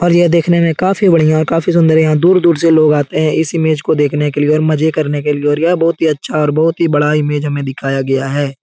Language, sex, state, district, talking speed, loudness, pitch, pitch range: Hindi, male, Bihar, Jahanabad, 290 wpm, -12 LUFS, 155 Hz, 145-165 Hz